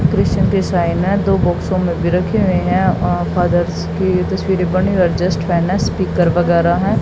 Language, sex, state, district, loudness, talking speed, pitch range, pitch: Hindi, female, Haryana, Jhajjar, -15 LUFS, 170 wpm, 175-185 Hz, 180 Hz